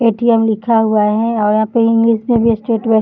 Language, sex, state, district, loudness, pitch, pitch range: Hindi, female, Bihar, Jahanabad, -13 LUFS, 225 Hz, 220-230 Hz